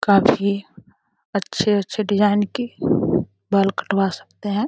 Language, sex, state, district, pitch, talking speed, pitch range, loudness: Hindi, female, Uttar Pradesh, Deoria, 200 Hz, 115 wpm, 195-210 Hz, -20 LUFS